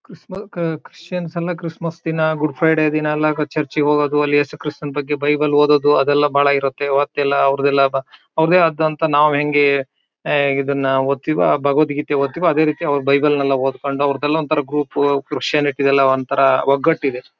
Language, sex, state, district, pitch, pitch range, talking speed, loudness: Kannada, male, Karnataka, Shimoga, 145 Hz, 140-155 Hz, 170 wpm, -17 LUFS